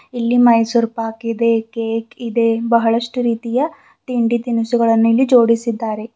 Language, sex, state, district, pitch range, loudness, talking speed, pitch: Kannada, female, Karnataka, Bidar, 230-240 Hz, -16 LUFS, 115 wpm, 230 Hz